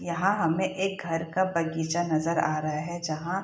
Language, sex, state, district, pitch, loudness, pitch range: Hindi, female, Bihar, Saharsa, 170 Hz, -28 LUFS, 160-185 Hz